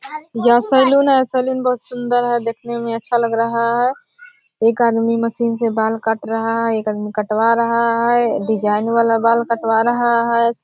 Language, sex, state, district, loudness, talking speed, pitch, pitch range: Hindi, female, Bihar, Purnia, -16 LUFS, 180 wpm, 235 Hz, 225-240 Hz